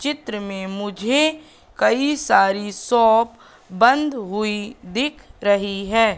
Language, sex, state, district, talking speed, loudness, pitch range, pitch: Hindi, female, Madhya Pradesh, Katni, 105 wpm, -20 LUFS, 200-260 Hz, 225 Hz